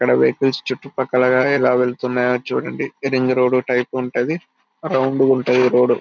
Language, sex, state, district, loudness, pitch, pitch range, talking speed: Telugu, male, Telangana, Karimnagar, -18 LUFS, 130 Hz, 125-135 Hz, 150 wpm